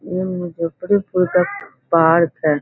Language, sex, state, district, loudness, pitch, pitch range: Hindi, female, Bihar, Muzaffarpur, -18 LUFS, 175 Hz, 165-180 Hz